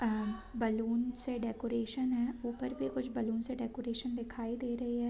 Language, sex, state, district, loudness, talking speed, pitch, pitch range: Hindi, female, Bihar, Sitamarhi, -37 LUFS, 175 wpm, 235 Hz, 230-245 Hz